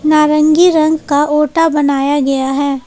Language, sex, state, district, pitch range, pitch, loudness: Hindi, female, Jharkhand, Palamu, 285-310 Hz, 300 Hz, -12 LUFS